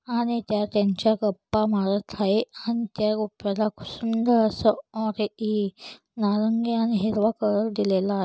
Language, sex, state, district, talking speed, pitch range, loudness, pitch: Marathi, female, Maharashtra, Solapur, 115 wpm, 205-225 Hz, -25 LUFS, 215 Hz